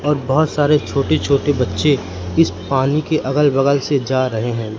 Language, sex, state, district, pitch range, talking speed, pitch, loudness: Hindi, male, Madhya Pradesh, Katni, 110-145 Hz, 190 wpm, 135 Hz, -17 LUFS